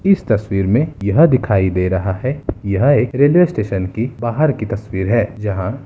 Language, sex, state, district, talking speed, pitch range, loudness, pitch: Hindi, male, Bihar, Darbhanga, 195 wpm, 95-135 Hz, -16 LUFS, 110 Hz